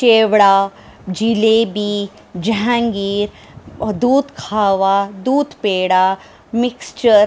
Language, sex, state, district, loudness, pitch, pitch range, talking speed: Hindi, female, Bihar, Purnia, -16 LUFS, 210 Hz, 195-230 Hz, 65 wpm